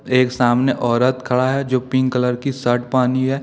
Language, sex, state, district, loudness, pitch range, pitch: Hindi, male, Jharkhand, Deoghar, -18 LUFS, 125-130 Hz, 130 Hz